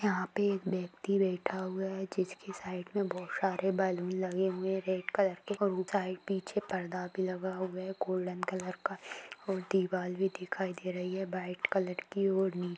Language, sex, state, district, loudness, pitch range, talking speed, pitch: Hindi, female, Jharkhand, Sahebganj, -34 LUFS, 185-195 Hz, 190 wpm, 185 Hz